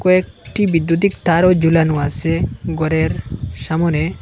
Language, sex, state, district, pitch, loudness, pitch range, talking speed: Bengali, male, Assam, Hailakandi, 165 Hz, -17 LUFS, 155-175 Hz, 115 wpm